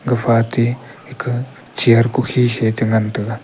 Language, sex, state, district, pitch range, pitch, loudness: Wancho, male, Arunachal Pradesh, Longding, 115-125 Hz, 120 Hz, -17 LUFS